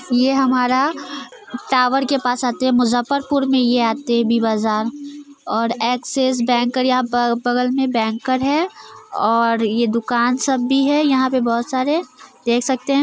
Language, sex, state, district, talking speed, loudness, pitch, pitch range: Hindi, female, Bihar, Muzaffarpur, 150 wpm, -18 LUFS, 250 Hz, 235-270 Hz